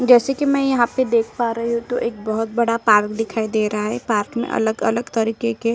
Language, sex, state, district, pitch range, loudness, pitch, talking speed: Hindi, female, Uttar Pradesh, Etah, 220-240 Hz, -20 LUFS, 230 Hz, 250 wpm